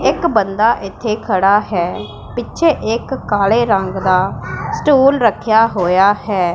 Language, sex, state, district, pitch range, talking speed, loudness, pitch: Punjabi, female, Punjab, Pathankot, 190-230 Hz, 130 wpm, -15 LUFS, 210 Hz